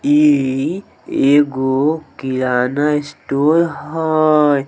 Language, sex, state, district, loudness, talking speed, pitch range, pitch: Maithili, male, Bihar, Samastipur, -16 LUFS, 65 wpm, 135-160 Hz, 145 Hz